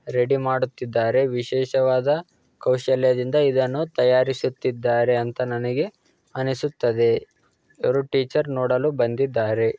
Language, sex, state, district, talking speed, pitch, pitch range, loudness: Kannada, male, Karnataka, Dakshina Kannada, 80 wpm, 130 Hz, 125-135 Hz, -22 LUFS